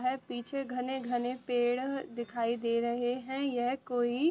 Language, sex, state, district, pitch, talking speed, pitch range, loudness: Hindi, female, Uttarakhand, Tehri Garhwal, 245 Hz, 155 wpm, 240-260 Hz, -33 LUFS